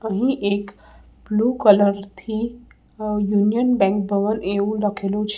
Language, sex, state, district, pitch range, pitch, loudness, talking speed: Gujarati, female, Gujarat, Valsad, 200-220 Hz, 210 Hz, -20 LUFS, 135 wpm